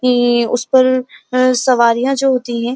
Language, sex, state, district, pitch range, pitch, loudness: Hindi, female, Uttar Pradesh, Muzaffarnagar, 240-255 Hz, 250 Hz, -14 LUFS